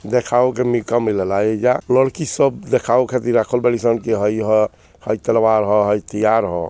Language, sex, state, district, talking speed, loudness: Bhojpuri, male, Bihar, Gopalganj, 190 wpm, -17 LUFS